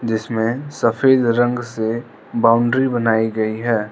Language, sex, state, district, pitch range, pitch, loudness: Hindi, male, Arunachal Pradesh, Lower Dibang Valley, 110-120 Hz, 115 Hz, -18 LUFS